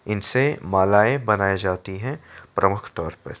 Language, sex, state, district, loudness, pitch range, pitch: Hindi, male, Uttar Pradesh, Jyotiba Phule Nagar, -22 LUFS, 95-130 Hz, 105 Hz